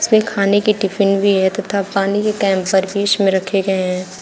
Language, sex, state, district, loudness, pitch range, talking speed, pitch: Hindi, female, Uttar Pradesh, Shamli, -16 LUFS, 190-205 Hz, 215 wpm, 200 Hz